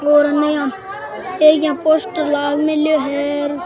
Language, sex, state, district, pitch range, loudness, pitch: Rajasthani, male, Rajasthan, Churu, 290-315 Hz, -16 LUFS, 300 Hz